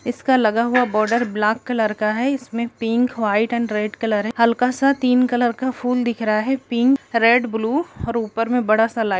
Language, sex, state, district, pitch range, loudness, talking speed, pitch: Hindi, female, Bihar, East Champaran, 220-250 Hz, -19 LUFS, 220 wpm, 235 Hz